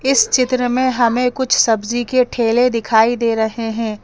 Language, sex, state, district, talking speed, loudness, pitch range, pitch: Hindi, female, Madhya Pradesh, Bhopal, 180 wpm, -16 LUFS, 225-255 Hz, 240 Hz